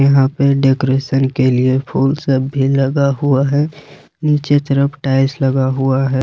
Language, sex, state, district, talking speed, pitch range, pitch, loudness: Hindi, male, Jharkhand, Ranchi, 165 wpm, 135-140 Hz, 135 Hz, -15 LUFS